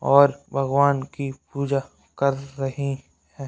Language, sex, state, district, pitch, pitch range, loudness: Hindi, female, Bihar, Saran, 140 Hz, 135-140 Hz, -23 LUFS